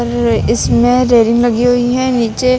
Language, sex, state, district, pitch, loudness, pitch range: Hindi, female, Uttar Pradesh, Lucknow, 245 Hz, -12 LUFS, 235-250 Hz